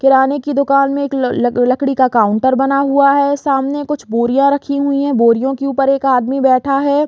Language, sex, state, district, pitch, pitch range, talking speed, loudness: Hindi, female, Chhattisgarh, Raigarh, 275 Hz, 260-280 Hz, 205 wpm, -14 LUFS